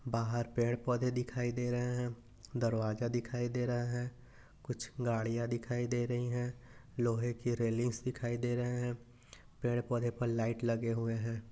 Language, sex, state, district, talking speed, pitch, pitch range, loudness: Hindi, male, Maharashtra, Nagpur, 165 wpm, 120 Hz, 115-125 Hz, -36 LUFS